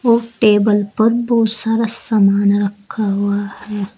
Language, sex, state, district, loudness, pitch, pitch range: Hindi, female, Uttar Pradesh, Saharanpur, -16 LUFS, 210 Hz, 200-225 Hz